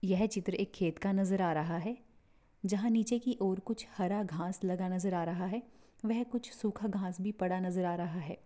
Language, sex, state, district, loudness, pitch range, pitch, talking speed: Hindi, female, Maharashtra, Pune, -35 LUFS, 180-225 Hz, 195 Hz, 220 wpm